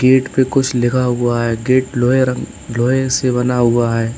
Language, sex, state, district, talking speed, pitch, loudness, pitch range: Hindi, male, Uttar Pradesh, Lalitpur, 200 wpm, 125 Hz, -15 LUFS, 120-130 Hz